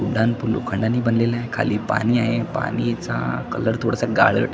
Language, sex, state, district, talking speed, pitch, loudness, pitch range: Marathi, male, Maharashtra, Washim, 160 wpm, 115 Hz, -21 LUFS, 110-120 Hz